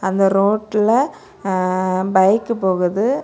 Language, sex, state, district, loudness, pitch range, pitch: Tamil, female, Tamil Nadu, Kanyakumari, -17 LUFS, 185-215 Hz, 195 Hz